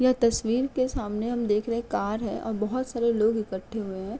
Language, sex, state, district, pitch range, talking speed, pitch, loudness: Hindi, female, Uttar Pradesh, Etah, 215-240 Hz, 240 wpm, 230 Hz, -27 LUFS